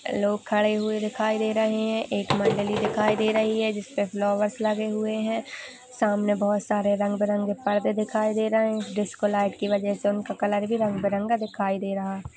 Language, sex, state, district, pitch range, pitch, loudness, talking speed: Hindi, female, Maharashtra, Pune, 205-220 Hz, 210 Hz, -25 LUFS, 215 wpm